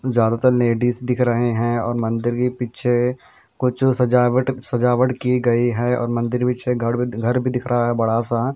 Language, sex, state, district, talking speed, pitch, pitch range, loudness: Hindi, male, Haryana, Jhajjar, 190 wpm, 120 Hz, 120-125 Hz, -19 LUFS